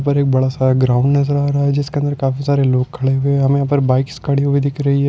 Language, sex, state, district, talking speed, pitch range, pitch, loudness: Hindi, male, Maharashtra, Solapur, 295 wpm, 135-140 Hz, 140 Hz, -16 LUFS